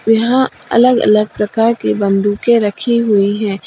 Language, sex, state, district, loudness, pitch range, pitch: Hindi, female, Uttar Pradesh, Lalitpur, -13 LUFS, 205-235 Hz, 215 Hz